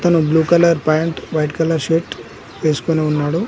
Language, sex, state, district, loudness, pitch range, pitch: Telugu, male, Telangana, Mahabubabad, -16 LUFS, 155-165 Hz, 160 Hz